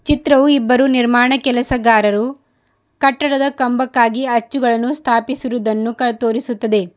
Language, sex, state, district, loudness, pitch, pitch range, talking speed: Kannada, female, Karnataka, Bidar, -15 LUFS, 250 Hz, 235-270 Hz, 75 wpm